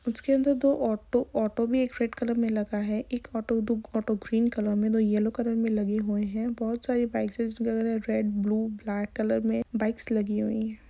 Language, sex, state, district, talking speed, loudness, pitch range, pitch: Hindi, female, Bihar, Madhepura, 210 wpm, -28 LUFS, 215-235 Hz, 225 Hz